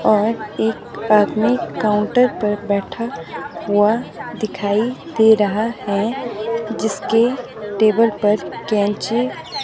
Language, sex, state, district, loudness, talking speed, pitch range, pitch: Hindi, female, Himachal Pradesh, Shimla, -18 LUFS, 95 wpm, 210-230 Hz, 215 Hz